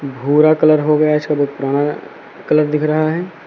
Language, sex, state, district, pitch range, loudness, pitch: Hindi, male, Uttar Pradesh, Lucknow, 145-155 Hz, -15 LUFS, 150 Hz